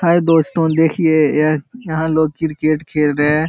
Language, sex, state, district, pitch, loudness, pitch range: Hindi, male, Bihar, Jahanabad, 160 Hz, -16 LUFS, 150-160 Hz